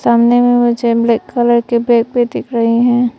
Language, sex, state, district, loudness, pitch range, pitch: Hindi, female, Arunachal Pradesh, Papum Pare, -13 LUFS, 235-245 Hz, 235 Hz